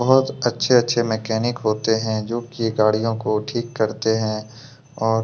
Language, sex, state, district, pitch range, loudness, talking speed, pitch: Hindi, male, Chhattisgarh, Kabirdham, 110-120 Hz, -21 LUFS, 150 wpm, 115 Hz